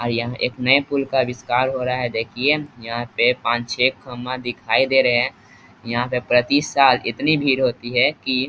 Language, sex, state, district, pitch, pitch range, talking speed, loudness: Hindi, male, Bihar, East Champaran, 125 Hz, 120-130 Hz, 205 wpm, -19 LUFS